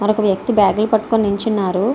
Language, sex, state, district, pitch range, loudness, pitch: Telugu, female, Andhra Pradesh, Srikakulam, 200-220 Hz, -16 LUFS, 210 Hz